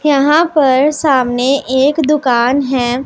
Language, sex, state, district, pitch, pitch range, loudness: Hindi, female, Punjab, Pathankot, 275 Hz, 255-300 Hz, -12 LUFS